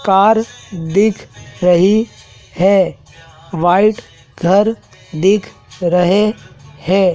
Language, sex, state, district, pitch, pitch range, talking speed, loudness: Hindi, male, Madhya Pradesh, Dhar, 185 Hz, 170-205 Hz, 75 wpm, -14 LUFS